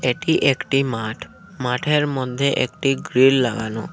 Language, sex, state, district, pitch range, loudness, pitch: Bengali, male, Tripura, Unakoti, 125-140 Hz, -20 LUFS, 135 Hz